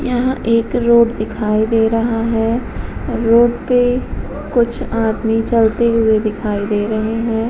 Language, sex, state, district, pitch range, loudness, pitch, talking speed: Hindi, female, Uttar Pradesh, Muzaffarnagar, 220-235 Hz, -16 LUFS, 225 Hz, 135 wpm